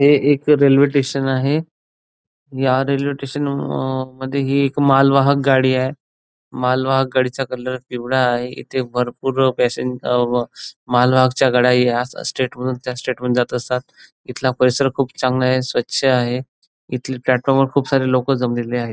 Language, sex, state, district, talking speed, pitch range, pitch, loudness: Marathi, male, Maharashtra, Chandrapur, 165 wpm, 125-135 Hz, 130 Hz, -18 LUFS